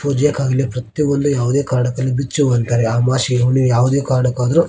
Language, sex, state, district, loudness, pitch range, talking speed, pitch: Kannada, male, Karnataka, Dharwad, -16 LUFS, 125-140 Hz, 180 wpm, 130 Hz